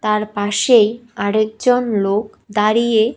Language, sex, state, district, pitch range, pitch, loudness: Bengali, female, Tripura, West Tripura, 210-235 Hz, 215 Hz, -16 LUFS